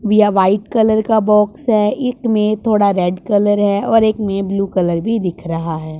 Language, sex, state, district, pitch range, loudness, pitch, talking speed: Hindi, male, Punjab, Pathankot, 195-220 Hz, -15 LUFS, 210 Hz, 210 wpm